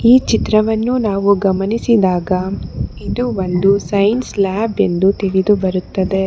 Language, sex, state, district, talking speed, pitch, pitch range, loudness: Kannada, female, Karnataka, Bangalore, 105 wpm, 200 Hz, 190-220 Hz, -16 LUFS